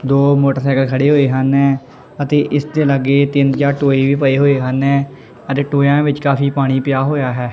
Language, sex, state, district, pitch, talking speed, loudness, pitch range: Punjabi, male, Punjab, Kapurthala, 140 Hz, 190 wpm, -14 LUFS, 135-140 Hz